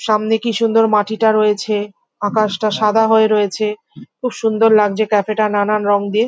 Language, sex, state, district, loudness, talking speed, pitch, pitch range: Bengali, female, West Bengal, Jhargram, -15 LUFS, 180 wpm, 215 Hz, 210-220 Hz